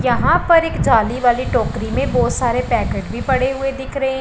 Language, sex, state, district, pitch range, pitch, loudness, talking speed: Hindi, female, Punjab, Pathankot, 250-270 Hz, 265 Hz, -17 LUFS, 230 wpm